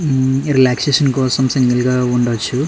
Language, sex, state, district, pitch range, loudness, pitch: Telugu, male, Andhra Pradesh, Srikakulam, 125-135 Hz, -15 LUFS, 130 Hz